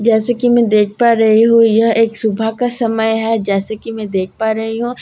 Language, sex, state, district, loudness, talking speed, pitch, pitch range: Hindi, female, Bihar, Katihar, -14 LUFS, 240 wpm, 225 Hz, 220-230 Hz